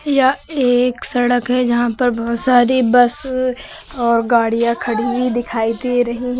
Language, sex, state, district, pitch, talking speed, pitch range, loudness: Hindi, female, Uttar Pradesh, Lucknow, 245 Hz, 160 wpm, 235-255 Hz, -16 LUFS